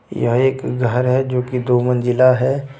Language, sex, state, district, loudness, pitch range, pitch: Hindi, male, Jharkhand, Deoghar, -17 LUFS, 125-130 Hz, 125 Hz